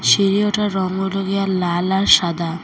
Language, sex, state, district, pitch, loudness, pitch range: Bengali, female, Assam, Hailakandi, 190 Hz, -17 LUFS, 175-195 Hz